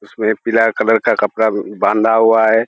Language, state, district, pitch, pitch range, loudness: Surjapuri, Bihar, Kishanganj, 115 Hz, 110-115 Hz, -14 LUFS